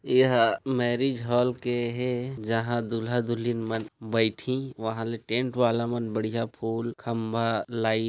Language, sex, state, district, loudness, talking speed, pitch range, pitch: Hindi, male, Chhattisgarh, Raigarh, -27 LUFS, 150 wpm, 115-120 Hz, 115 Hz